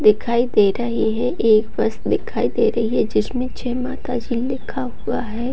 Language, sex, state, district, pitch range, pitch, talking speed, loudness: Hindi, female, Bihar, Gopalganj, 220-250 Hz, 235 Hz, 205 wpm, -20 LUFS